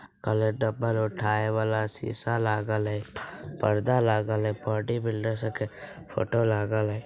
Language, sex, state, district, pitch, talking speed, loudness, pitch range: Bajjika, female, Bihar, Vaishali, 110 Hz, 135 wpm, -28 LUFS, 105-115 Hz